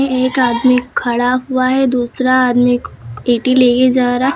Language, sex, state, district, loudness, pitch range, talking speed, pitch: Hindi, female, Uttar Pradesh, Lucknow, -14 LUFS, 245-255 Hz, 150 wpm, 250 Hz